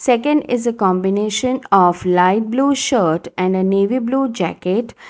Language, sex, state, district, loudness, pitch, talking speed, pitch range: English, female, Gujarat, Valsad, -17 LUFS, 215 Hz, 140 wpm, 185-255 Hz